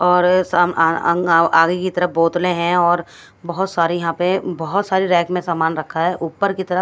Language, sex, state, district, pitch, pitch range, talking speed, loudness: Hindi, female, Bihar, West Champaran, 175 Hz, 165-180 Hz, 220 wpm, -17 LUFS